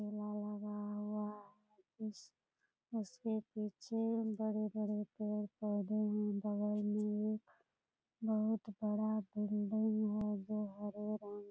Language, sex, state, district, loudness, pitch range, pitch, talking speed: Hindi, female, Bihar, Purnia, -40 LUFS, 210-215 Hz, 210 Hz, 105 wpm